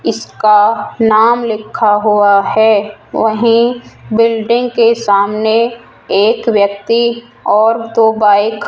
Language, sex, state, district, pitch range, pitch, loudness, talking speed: Hindi, female, Rajasthan, Jaipur, 210-230 Hz, 220 Hz, -12 LUFS, 105 wpm